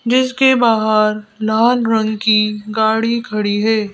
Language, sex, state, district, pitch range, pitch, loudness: Hindi, female, Madhya Pradesh, Bhopal, 215-235 Hz, 220 Hz, -15 LUFS